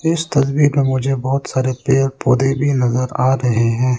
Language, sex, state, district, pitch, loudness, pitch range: Hindi, male, Arunachal Pradesh, Lower Dibang Valley, 135 Hz, -16 LUFS, 125-140 Hz